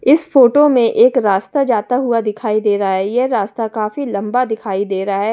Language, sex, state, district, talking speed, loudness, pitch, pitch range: Hindi, female, Delhi, New Delhi, 215 wpm, -15 LUFS, 225 Hz, 205-255 Hz